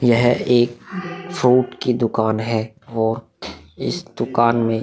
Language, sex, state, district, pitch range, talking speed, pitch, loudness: Hindi, male, Bihar, Vaishali, 115-125 Hz, 125 wpm, 120 Hz, -19 LUFS